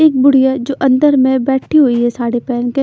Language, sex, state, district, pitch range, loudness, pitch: Hindi, female, Chandigarh, Chandigarh, 245-275 Hz, -12 LUFS, 265 Hz